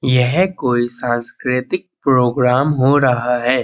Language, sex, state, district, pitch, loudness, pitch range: Hindi, male, Uttar Pradesh, Budaun, 125 Hz, -16 LUFS, 125-135 Hz